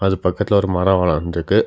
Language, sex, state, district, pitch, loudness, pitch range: Tamil, male, Tamil Nadu, Nilgiris, 95 Hz, -18 LUFS, 90-100 Hz